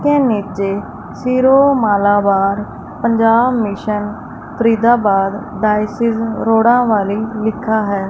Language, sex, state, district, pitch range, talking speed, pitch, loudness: Hindi, female, Punjab, Fazilka, 205-235 Hz, 95 wpm, 220 Hz, -15 LUFS